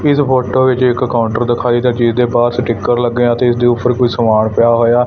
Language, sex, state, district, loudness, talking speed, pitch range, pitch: Punjabi, male, Punjab, Fazilka, -13 LUFS, 235 wpm, 120-125 Hz, 120 Hz